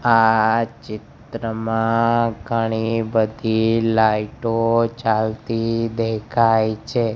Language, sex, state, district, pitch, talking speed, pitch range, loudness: Gujarati, male, Gujarat, Gandhinagar, 115 Hz, 75 wpm, 110-115 Hz, -19 LUFS